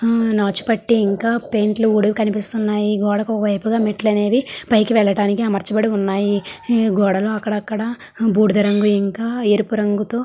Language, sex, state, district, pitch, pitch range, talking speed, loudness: Telugu, female, Andhra Pradesh, Srikakulam, 215 Hz, 205-225 Hz, 160 wpm, -18 LUFS